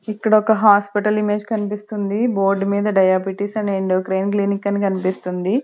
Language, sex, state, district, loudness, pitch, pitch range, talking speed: Telugu, female, Andhra Pradesh, Sri Satya Sai, -18 LUFS, 200 Hz, 195-210 Hz, 140 wpm